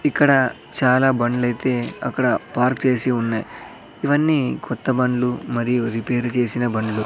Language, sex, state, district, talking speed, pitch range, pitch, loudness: Telugu, male, Andhra Pradesh, Sri Satya Sai, 120 wpm, 120-130 Hz, 125 Hz, -20 LUFS